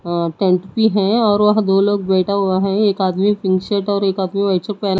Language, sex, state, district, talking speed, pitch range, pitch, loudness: Hindi, female, Odisha, Nuapada, 265 wpm, 190-205 Hz, 195 Hz, -16 LUFS